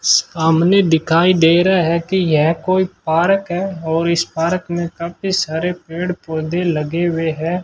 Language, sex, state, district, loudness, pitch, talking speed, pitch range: Hindi, male, Rajasthan, Bikaner, -16 LUFS, 170 Hz, 165 wpm, 165-180 Hz